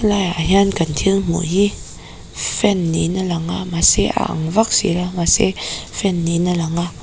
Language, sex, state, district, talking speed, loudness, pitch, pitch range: Mizo, female, Mizoram, Aizawl, 215 wpm, -17 LUFS, 175 Hz, 170-195 Hz